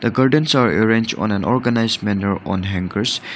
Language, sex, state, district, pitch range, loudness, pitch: English, male, Nagaland, Dimapur, 100-120 Hz, -18 LUFS, 110 Hz